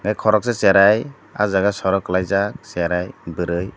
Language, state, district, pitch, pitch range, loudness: Kokborok, Tripura, Dhalai, 100 Hz, 90-105 Hz, -19 LUFS